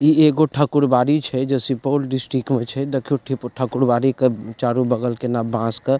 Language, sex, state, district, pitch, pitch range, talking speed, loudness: Maithili, male, Bihar, Supaul, 130 Hz, 125-140 Hz, 200 wpm, -20 LUFS